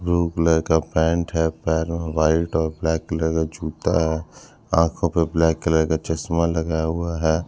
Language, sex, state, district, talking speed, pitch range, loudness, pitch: Hindi, male, Punjab, Kapurthala, 185 wpm, 80-85 Hz, -21 LUFS, 80 Hz